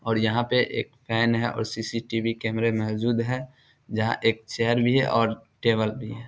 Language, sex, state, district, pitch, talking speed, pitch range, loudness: Hindi, male, Bihar, Samastipur, 115 Hz, 180 wpm, 115-120 Hz, -25 LUFS